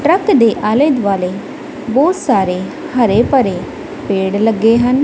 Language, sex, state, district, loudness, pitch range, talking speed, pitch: Punjabi, female, Punjab, Kapurthala, -14 LUFS, 205-295 Hz, 130 wpm, 245 Hz